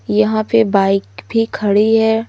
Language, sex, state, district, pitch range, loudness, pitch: Hindi, female, Madhya Pradesh, Umaria, 200-225 Hz, -15 LUFS, 215 Hz